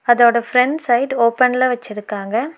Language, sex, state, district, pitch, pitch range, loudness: Tamil, female, Tamil Nadu, Nilgiris, 240 Hz, 230-255 Hz, -16 LUFS